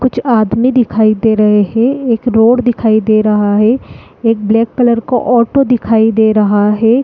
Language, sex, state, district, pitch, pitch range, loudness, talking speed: Hindi, female, Uttarakhand, Uttarkashi, 225 Hz, 215-245 Hz, -11 LUFS, 180 wpm